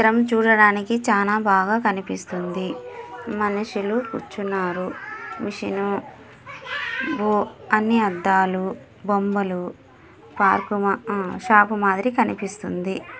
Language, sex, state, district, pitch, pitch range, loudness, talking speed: Telugu, female, Andhra Pradesh, Anantapur, 205 Hz, 195-225 Hz, -22 LUFS, 80 wpm